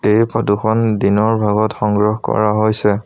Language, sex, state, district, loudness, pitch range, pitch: Assamese, male, Assam, Sonitpur, -15 LUFS, 105-110 Hz, 105 Hz